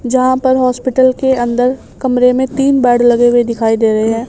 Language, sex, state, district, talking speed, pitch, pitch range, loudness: Hindi, female, Haryana, Jhajjar, 210 wpm, 250 Hz, 240-260 Hz, -12 LUFS